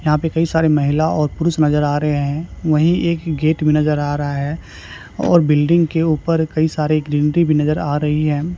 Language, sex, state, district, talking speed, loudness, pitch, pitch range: Hindi, male, Chhattisgarh, Raipur, 215 wpm, -17 LUFS, 155 Hz, 150-160 Hz